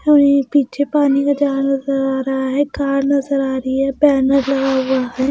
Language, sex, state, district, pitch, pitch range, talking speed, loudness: Hindi, female, Bihar, Patna, 275 Hz, 270-285 Hz, 215 wpm, -16 LUFS